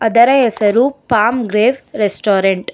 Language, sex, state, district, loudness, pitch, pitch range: Kannada, female, Karnataka, Bangalore, -14 LUFS, 230 Hz, 210-250 Hz